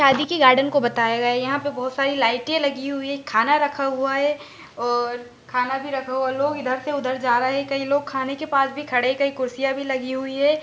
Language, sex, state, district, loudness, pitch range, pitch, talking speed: Hindi, female, Maharashtra, Dhule, -22 LUFS, 255-280 Hz, 270 Hz, 255 wpm